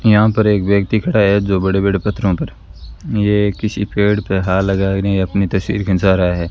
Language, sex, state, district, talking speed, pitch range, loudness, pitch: Hindi, female, Rajasthan, Bikaner, 210 wpm, 95-105 Hz, -16 LUFS, 100 Hz